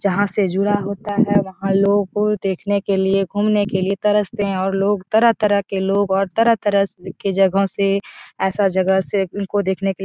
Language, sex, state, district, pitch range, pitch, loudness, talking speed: Hindi, female, Bihar, Jahanabad, 195-205 Hz, 200 Hz, -18 LUFS, 205 wpm